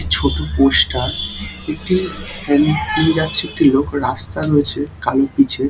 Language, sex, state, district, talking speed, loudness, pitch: Bengali, male, West Bengal, Dakshin Dinajpur, 105 wpm, -17 LUFS, 135 Hz